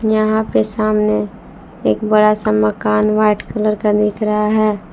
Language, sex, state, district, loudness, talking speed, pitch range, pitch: Hindi, female, Jharkhand, Palamu, -15 LUFS, 160 wpm, 210-215 Hz, 215 Hz